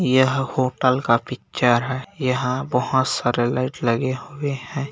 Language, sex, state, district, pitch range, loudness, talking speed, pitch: Hindi, male, Bihar, Bhagalpur, 125-135 Hz, -21 LUFS, 145 wpm, 130 Hz